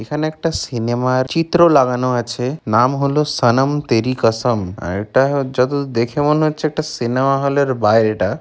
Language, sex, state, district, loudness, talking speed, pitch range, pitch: Bengali, male, West Bengal, Kolkata, -17 LUFS, 180 wpm, 120-145 Hz, 130 Hz